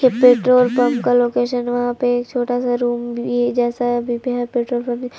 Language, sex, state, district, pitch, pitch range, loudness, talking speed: Hindi, female, Jharkhand, Palamu, 245 Hz, 240-245 Hz, -18 LUFS, 185 wpm